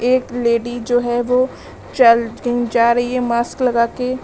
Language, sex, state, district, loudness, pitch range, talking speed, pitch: Hindi, female, Uttar Pradesh, Lalitpur, -17 LUFS, 235-250 Hz, 170 wpm, 240 Hz